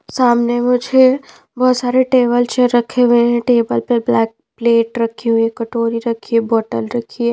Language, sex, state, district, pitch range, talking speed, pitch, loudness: Hindi, female, Punjab, Pathankot, 230-245 Hz, 180 wpm, 240 Hz, -15 LUFS